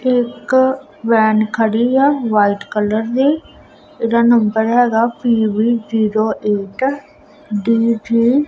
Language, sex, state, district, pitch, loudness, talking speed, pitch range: Punjabi, female, Punjab, Kapurthala, 230 Hz, -15 LUFS, 105 wpm, 215-255 Hz